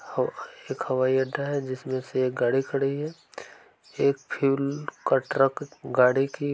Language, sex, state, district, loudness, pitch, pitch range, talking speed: Hindi, male, Uttar Pradesh, Varanasi, -26 LUFS, 135 Hz, 130-140 Hz, 165 wpm